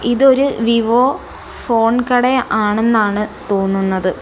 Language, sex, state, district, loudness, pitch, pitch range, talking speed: Malayalam, female, Kerala, Kollam, -15 LUFS, 230 Hz, 210-250 Hz, 85 wpm